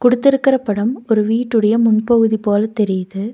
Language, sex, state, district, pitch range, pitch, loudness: Tamil, female, Tamil Nadu, Nilgiris, 210-240 Hz, 220 Hz, -16 LUFS